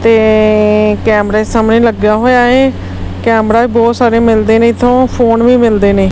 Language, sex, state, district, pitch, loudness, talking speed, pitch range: Punjabi, female, Punjab, Kapurthala, 225 Hz, -9 LUFS, 165 wpm, 215-235 Hz